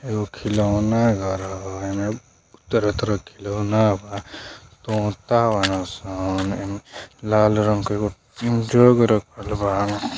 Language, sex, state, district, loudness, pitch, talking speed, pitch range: Bhojpuri, male, Uttar Pradesh, Deoria, -21 LUFS, 105 Hz, 110 wpm, 100-110 Hz